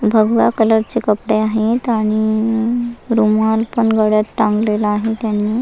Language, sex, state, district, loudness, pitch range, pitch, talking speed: Marathi, female, Maharashtra, Nagpur, -16 LUFS, 215-230 Hz, 220 Hz, 140 wpm